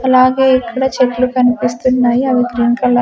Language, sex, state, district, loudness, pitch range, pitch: Telugu, female, Andhra Pradesh, Sri Satya Sai, -13 LUFS, 245-255 Hz, 255 Hz